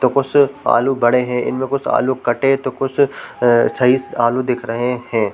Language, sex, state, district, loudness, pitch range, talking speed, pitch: Hindi, male, Chhattisgarh, Korba, -17 LUFS, 120-135 Hz, 190 wpm, 125 Hz